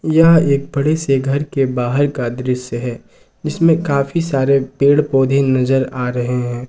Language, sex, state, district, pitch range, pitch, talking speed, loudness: Hindi, male, Jharkhand, Ranchi, 125-145 Hz, 135 Hz, 170 wpm, -16 LUFS